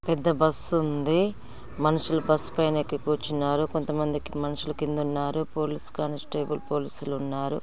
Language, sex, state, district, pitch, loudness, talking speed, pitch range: Telugu, female, Andhra Pradesh, Guntur, 150 Hz, -27 LUFS, 140 wpm, 145-155 Hz